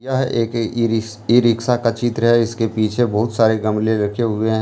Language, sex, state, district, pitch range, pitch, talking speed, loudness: Hindi, male, Jharkhand, Deoghar, 110-120 Hz, 115 Hz, 235 wpm, -18 LUFS